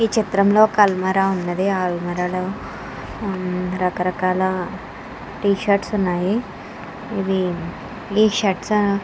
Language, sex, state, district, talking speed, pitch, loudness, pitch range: Telugu, female, Andhra Pradesh, Krishna, 100 wpm, 190 Hz, -20 LUFS, 185-205 Hz